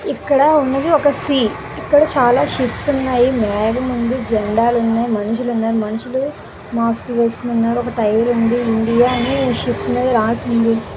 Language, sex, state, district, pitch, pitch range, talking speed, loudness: Telugu, female, Andhra Pradesh, Visakhapatnam, 240 Hz, 225-255 Hz, 125 wpm, -16 LUFS